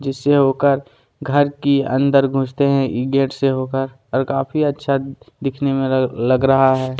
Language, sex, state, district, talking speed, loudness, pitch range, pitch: Hindi, male, Chhattisgarh, Kabirdham, 170 wpm, -18 LUFS, 130-140 Hz, 135 Hz